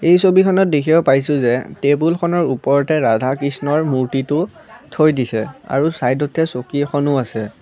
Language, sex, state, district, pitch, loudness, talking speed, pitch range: Assamese, male, Assam, Kamrup Metropolitan, 145 Hz, -17 LUFS, 135 wpm, 130-160 Hz